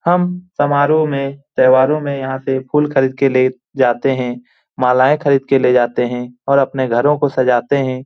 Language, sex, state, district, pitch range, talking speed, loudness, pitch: Hindi, male, Bihar, Lakhisarai, 130-145 Hz, 185 wpm, -15 LUFS, 135 Hz